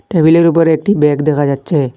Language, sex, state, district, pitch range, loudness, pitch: Bengali, male, Assam, Hailakandi, 145-165 Hz, -12 LUFS, 155 Hz